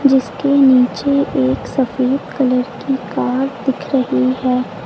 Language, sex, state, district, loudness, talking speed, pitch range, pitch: Hindi, female, Uttar Pradesh, Lucknow, -16 LUFS, 125 wpm, 250-275 Hz, 260 Hz